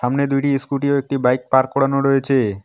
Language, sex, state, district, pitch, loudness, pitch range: Bengali, male, West Bengal, Alipurduar, 135 Hz, -18 LUFS, 130-140 Hz